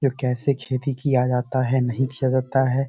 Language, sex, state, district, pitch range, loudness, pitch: Hindi, male, Bihar, Samastipur, 125-135 Hz, -22 LUFS, 130 Hz